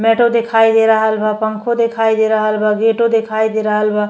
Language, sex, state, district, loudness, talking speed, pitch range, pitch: Bhojpuri, female, Uttar Pradesh, Deoria, -14 LUFS, 220 wpm, 215-225 Hz, 220 Hz